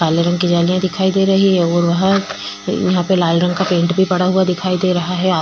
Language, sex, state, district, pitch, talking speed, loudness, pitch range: Hindi, female, Chhattisgarh, Korba, 180 Hz, 220 wpm, -15 LUFS, 175-190 Hz